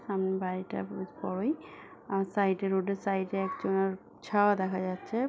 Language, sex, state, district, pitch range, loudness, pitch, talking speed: Bengali, female, West Bengal, Dakshin Dinajpur, 190-200 Hz, -31 LUFS, 195 Hz, 180 wpm